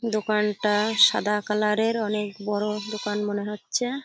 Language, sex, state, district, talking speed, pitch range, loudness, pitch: Bengali, female, West Bengal, Kolkata, 135 wpm, 210-215 Hz, -24 LUFS, 210 Hz